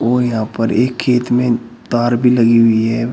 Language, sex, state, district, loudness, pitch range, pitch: Hindi, male, Uttar Pradesh, Shamli, -14 LUFS, 115-125 Hz, 120 Hz